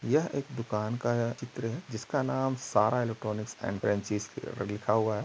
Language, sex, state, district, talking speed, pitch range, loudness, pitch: Hindi, male, Uttar Pradesh, Jalaun, 150 wpm, 105-125 Hz, -31 LUFS, 110 Hz